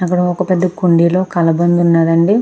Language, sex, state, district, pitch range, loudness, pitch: Telugu, female, Andhra Pradesh, Krishna, 170-180 Hz, -13 LUFS, 175 Hz